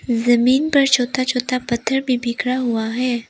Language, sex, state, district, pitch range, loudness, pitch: Hindi, female, Arunachal Pradesh, Lower Dibang Valley, 240-255 Hz, -18 LUFS, 250 Hz